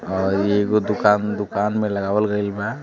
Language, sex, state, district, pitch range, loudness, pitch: Bhojpuri, male, Uttar Pradesh, Deoria, 100-105 Hz, -20 LUFS, 105 Hz